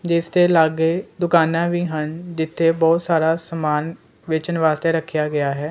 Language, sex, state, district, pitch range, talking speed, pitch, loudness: Punjabi, male, Punjab, Kapurthala, 160-170 Hz, 155 wpm, 165 Hz, -19 LUFS